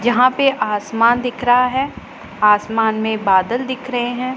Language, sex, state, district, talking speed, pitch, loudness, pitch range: Hindi, female, Punjab, Pathankot, 165 wpm, 240 Hz, -17 LUFS, 220-255 Hz